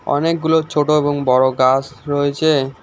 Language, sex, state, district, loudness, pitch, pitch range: Bengali, male, West Bengal, Alipurduar, -16 LUFS, 145 Hz, 135-155 Hz